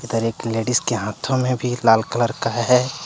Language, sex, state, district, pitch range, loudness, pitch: Hindi, male, Jharkhand, Deoghar, 115-125 Hz, -20 LUFS, 120 Hz